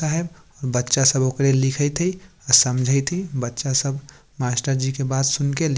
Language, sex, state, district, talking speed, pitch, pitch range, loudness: Bajjika, male, Bihar, Vaishali, 175 wpm, 135 Hz, 130-145 Hz, -20 LUFS